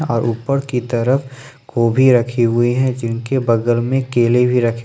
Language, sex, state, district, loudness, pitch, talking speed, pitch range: Hindi, male, Jharkhand, Ranchi, -16 LUFS, 125 Hz, 185 wpm, 115-130 Hz